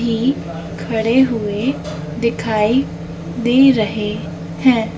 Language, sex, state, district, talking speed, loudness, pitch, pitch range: Hindi, female, Madhya Pradesh, Dhar, 85 wpm, -17 LUFS, 220 Hz, 170-240 Hz